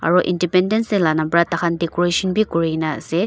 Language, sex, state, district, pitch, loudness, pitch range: Nagamese, female, Nagaland, Dimapur, 175 Hz, -18 LUFS, 165-185 Hz